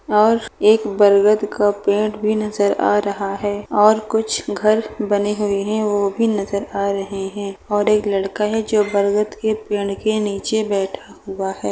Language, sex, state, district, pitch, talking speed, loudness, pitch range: Hindi, female, Bihar, Gaya, 205 Hz, 180 wpm, -18 LUFS, 200-215 Hz